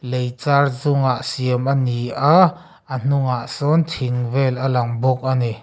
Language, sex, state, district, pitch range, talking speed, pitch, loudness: Mizo, male, Mizoram, Aizawl, 125-140 Hz, 170 wpm, 130 Hz, -19 LUFS